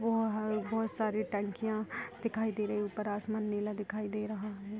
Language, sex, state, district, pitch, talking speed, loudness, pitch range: Hindi, female, Bihar, Sitamarhi, 215 Hz, 200 wpm, -35 LUFS, 210-220 Hz